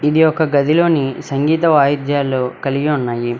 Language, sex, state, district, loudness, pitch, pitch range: Telugu, male, Telangana, Hyderabad, -15 LUFS, 145 Hz, 135-155 Hz